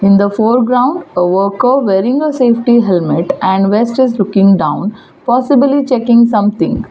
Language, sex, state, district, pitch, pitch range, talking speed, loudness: English, female, Gujarat, Valsad, 225 Hz, 195-250 Hz, 140 wpm, -11 LUFS